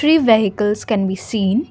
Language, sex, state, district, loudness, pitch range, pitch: English, female, Assam, Kamrup Metropolitan, -17 LUFS, 205-235 Hz, 215 Hz